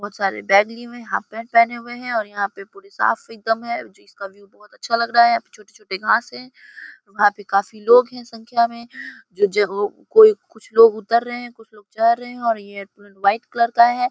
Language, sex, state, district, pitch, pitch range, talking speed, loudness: Hindi, female, Bihar, Samastipur, 230 Hz, 205-235 Hz, 240 wpm, -19 LUFS